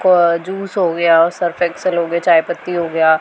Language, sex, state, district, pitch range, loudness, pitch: Hindi, female, Punjab, Pathankot, 170-180 Hz, -15 LUFS, 175 Hz